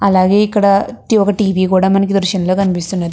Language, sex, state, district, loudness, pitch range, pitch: Telugu, female, Andhra Pradesh, Krishna, -13 LUFS, 185-200 Hz, 195 Hz